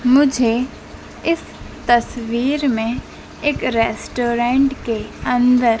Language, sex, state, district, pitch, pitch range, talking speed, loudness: Hindi, female, Madhya Pradesh, Dhar, 245 Hz, 235-270 Hz, 85 wpm, -18 LUFS